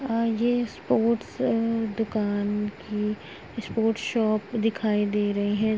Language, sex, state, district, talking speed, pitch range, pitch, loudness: Hindi, female, Uttar Pradesh, Etah, 125 wpm, 210-230 Hz, 220 Hz, -26 LUFS